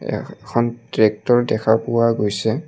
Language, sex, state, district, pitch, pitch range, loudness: Assamese, male, Assam, Kamrup Metropolitan, 115 Hz, 110-120 Hz, -19 LUFS